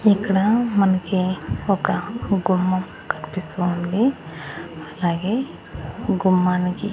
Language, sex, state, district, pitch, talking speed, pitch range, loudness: Telugu, female, Andhra Pradesh, Annamaya, 185 Hz, 70 wpm, 175-200 Hz, -21 LUFS